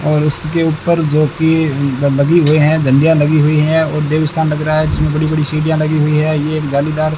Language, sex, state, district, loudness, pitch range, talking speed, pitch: Hindi, male, Rajasthan, Bikaner, -13 LUFS, 150-155 Hz, 235 wpm, 155 Hz